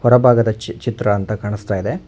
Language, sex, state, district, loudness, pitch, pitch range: Kannada, male, Karnataka, Bangalore, -17 LUFS, 105 Hz, 105-115 Hz